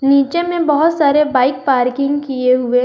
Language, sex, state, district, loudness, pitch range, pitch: Hindi, female, Jharkhand, Garhwa, -14 LUFS, 255-295 Hz, 275 Hz